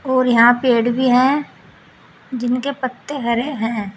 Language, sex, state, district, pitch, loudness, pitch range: Hindi, female, Uttar Pradesh, Saharanpur, 250 Hz, -17 LUFS, 240-265 Hz